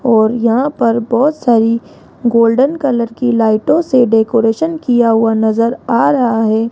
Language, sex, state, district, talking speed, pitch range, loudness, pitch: Hindi, female, Rajasthan, Jaipur, 150 wpm, 225-255 Hz, -13 LUFS, 235 Hz